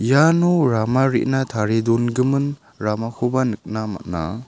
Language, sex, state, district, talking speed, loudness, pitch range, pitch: Garo, male, Meghalaya, South Garo Hills, 105 wpm, -20 LUFS, 110-135 Hz, 120 Hz